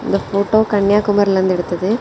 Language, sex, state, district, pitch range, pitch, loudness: Tamil, female, Tamil Nadu, Kanyakumari, 190-205 Hz, 200 Hz, -16 LUFS